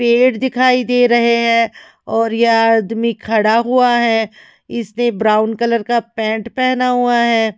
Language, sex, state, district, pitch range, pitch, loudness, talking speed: Hindi, female, Himachal Pradesh, Shimla, 225-240 Hz, 235 Hz, -14 LUFS, 150 wpm